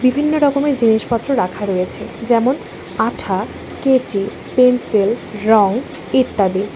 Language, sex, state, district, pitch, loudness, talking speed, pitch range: Bengali, female, West Bengal, Alipurduar, 235 Hz, -17 LUFS, 100 wpm, 205-260 Hz